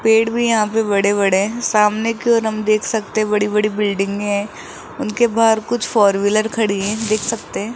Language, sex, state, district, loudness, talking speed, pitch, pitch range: Hindi, male, Rajasthan, Jaipur, -17 LUFS, 195 wpm, 215 Hz, 205-225 Hz